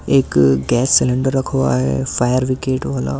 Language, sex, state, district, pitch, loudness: Hindi, male, Delhi, New Delhi, 120 Hz, -16 LUFS